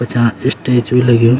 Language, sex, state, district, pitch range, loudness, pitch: Garhwali, male, Uttarakhand, Uttarkashi, 120-125 Hz, -13 LUFS, 120 Hz